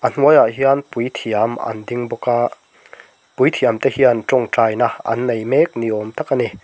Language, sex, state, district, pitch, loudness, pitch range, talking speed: Mizo, male, Mizoram, Aizawl, 120 Hz, -17 LUFS, 115-135 Hz, 190 wpm